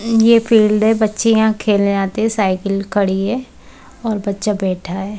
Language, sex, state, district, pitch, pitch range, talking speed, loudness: Hindi, female, Uttar Pradesh, Budaun, 210 Hz, 195-220 Hz, 175 wpm, -16 LUFS